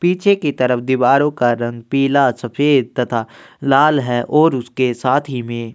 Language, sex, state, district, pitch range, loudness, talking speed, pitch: Hindi, male, Chhattisgarh, Kabirdham, 120-145 Hz, -16 LUFS, 175 wpm, 130 Hz